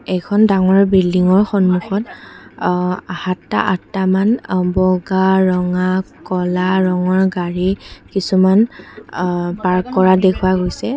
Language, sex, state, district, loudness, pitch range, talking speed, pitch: Assamese, female, Assam, Kamrup Metropolitan, -16 LUFS, 180-190 Hz, 110 wpm, 185 Hz